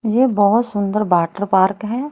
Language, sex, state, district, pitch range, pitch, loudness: Hindi, female, Haryana, Rohtak, 200-235 Hz, 210 Hz, -17 LUFS